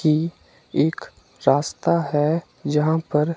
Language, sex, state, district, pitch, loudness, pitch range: Hindi, male, Himachal Pradesh, Shimla, 155 Hz, -22 LUFS, 150-165 Hz